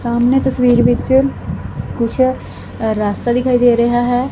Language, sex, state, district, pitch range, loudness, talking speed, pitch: Punjabi, female, Punjab, Fazilka, 235-255 Hz, -15 LUFS, 125 wpm, 245 Hz